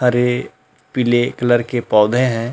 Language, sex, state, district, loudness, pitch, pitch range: Hindi, male, Chhattisgarh, Rajnandgaon, -17 LUFS, 120 Hz, 120-125 Hz